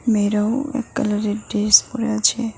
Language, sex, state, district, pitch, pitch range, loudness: Bengali, female, West Bengal, Cooch Behar, 220 Hz, 210-240 Hz, -19 LUFS